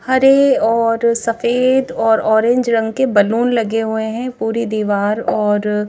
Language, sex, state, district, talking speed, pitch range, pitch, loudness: Hindi, female, Madhya Pradesh, Bhopal, 145 wpm, 220-245 Hz, 230 Hz, -15 LUFS